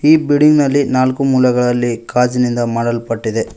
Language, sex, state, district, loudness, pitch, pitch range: Kannada, male, Karnataka, Koppal, -14 LUFS, 125 Hz, 120-140 Hz